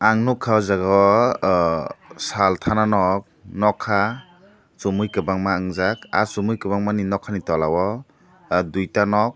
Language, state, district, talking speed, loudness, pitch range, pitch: Kokborok, Tripura, Dhalai, 140 wpm, -20 LUFS, 95-110 Hz, 105 Hz